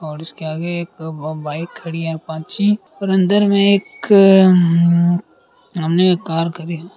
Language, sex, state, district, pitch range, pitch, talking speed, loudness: Hindi, male, Bihar, Purnia, 160-190 Hz, 170 Hz, 170 wpm, -16 LUFS